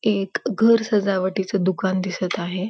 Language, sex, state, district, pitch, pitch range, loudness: Marathi, female, Maharashtra, Pune, 195 Hz, 185-210 Hz, -21 LUFS